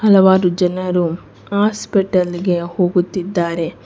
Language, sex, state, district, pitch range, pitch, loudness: Kannada, female, Karnataka, Bangalore, 175-190 Hz, 180 Hz, -17 LUFS